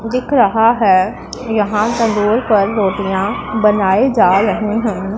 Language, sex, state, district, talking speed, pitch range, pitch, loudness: Hindi, female, Punjab, Pathankot, 140 wpm, 200-225 Hz, 215 Hz, -14 LUFS